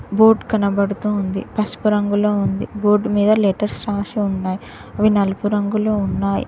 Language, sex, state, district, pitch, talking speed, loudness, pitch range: Telugu, female, Telangana, Mahabubabad, 205 Hz, 140 wpm, -18 LUFS, 200-210 Hz